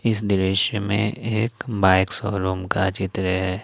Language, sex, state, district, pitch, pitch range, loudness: Hindi, male, Jharkhand, Ranchi, 100 Hz, 95-105 Hz, -22 LUFS